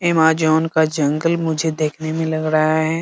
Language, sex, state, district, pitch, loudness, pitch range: Hindi, male, Bihar, Muzaffarpur, 160 Hz, -18 LUFS, 155-160 Hz